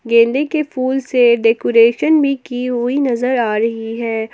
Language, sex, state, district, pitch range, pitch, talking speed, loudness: Hindi, female, Jharkhand, Palamu, 230-265 Hz, 245 Hz, 165 wpm, -15 LUFS